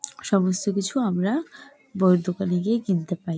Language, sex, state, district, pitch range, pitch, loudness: Bengali, female, West Bengal, Jalpaiguri, 180-265 Hz, 200 Hz, -24 LUFS